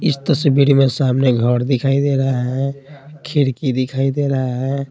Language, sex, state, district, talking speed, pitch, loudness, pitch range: Hindi, male, Bihar, Patna, 170 wpm, 135 Hz, -17 LUFS, 130-140 Hz